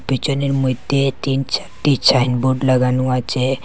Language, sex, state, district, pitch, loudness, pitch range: Bengali, male, Assam, Hailakandi, 130 Hz, -17 LUFS, 130-135 Hz